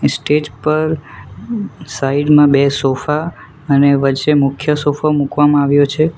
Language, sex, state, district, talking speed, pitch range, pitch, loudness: Gujarati, male, Gujarat, Valsad, 125 wpm, 140-150 Hz, 145 Hz, -14 LUFS